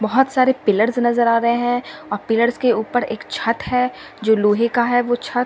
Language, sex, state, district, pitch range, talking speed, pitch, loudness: Hindi, female, Delhi, New Delhi, 225-245 Hz, 220 wpm, 240 Hz, -18 LUFS